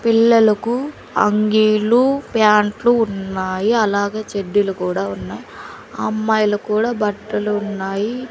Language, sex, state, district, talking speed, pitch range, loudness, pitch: Telugu, female, Andhra Pradesh, Sri Satya Sai, 80 wpm, 205-225 Hz, -17 LUFS, 215 Hz